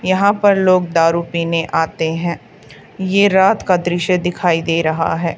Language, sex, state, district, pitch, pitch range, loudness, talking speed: Hindi, female, Haryana, Charkhi Dadri, 175 Hz, 165-185 Hz, -15 LUFS, 165 wpm